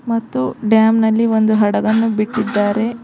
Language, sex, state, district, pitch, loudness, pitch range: Kannada, female, Karnataka, Koppal, 220 Hz, -15 LUFS, 210-225 Hz